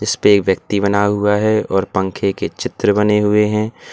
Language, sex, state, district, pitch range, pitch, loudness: Hindi, male, Uttar Pradesh, Lalitpur, 100-105 Hz, 105 Hz, -16 LUFS